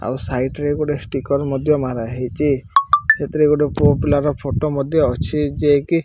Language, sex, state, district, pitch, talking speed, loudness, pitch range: Odia, male, Odisha, Malkangiri, 145 Hz, 180 wpm, -18 LUFS, 135-150 Hz